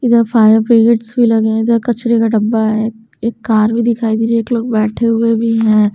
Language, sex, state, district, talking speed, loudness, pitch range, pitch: Hindi, female, Bihar, Patna, 255 wpm, -13 LUFS, 220-235 Hz, 225 Hz